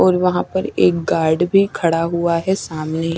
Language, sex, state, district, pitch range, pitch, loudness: Hindi, female, Chhattisgarh, Raipur, 165-180 Hz, 170 Hz, -17 LUFS